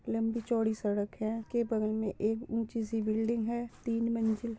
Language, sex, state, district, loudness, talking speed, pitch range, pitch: Hindi, female, Uttar Pradesh, Muzaffarnagar, -33 LUFS, 195 wpm, 220-230 Hz, 225 Hz